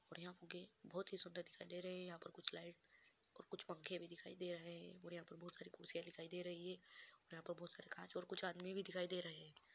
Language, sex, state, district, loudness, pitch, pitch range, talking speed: Hindi, female, Bihar, Vaishali, -51 LUFS, 175 Hz, 170-185 Hz, 285 wpm